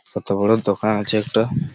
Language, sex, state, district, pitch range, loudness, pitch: Bengali, male, West Bengal, Malda, 105-110 Hz, -20 LUFS, 110 Hz